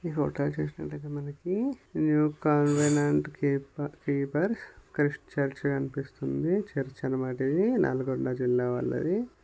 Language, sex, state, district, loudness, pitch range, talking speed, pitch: Telugu, male, Telangana, Nalgonda, -29 LUFS, 135-150 Hz, 100 wpm, 145 Hz